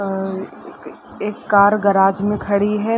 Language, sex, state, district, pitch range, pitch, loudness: Hindi, female, Uttar Pradesh, Gorakhpur, 195-210 Hz, 200 Hz, -17 LUFS